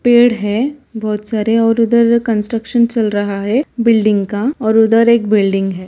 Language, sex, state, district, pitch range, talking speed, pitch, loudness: Hindi, female, Bihar, Gopalganj, 210-235 Hz, 175 wpm, 225 Hz, -14 LUFS